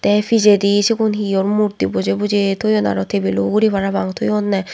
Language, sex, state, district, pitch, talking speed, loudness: Chakma, female, Tripura, West Tripura, 200 Hz, 165 wpm, -16 LUFS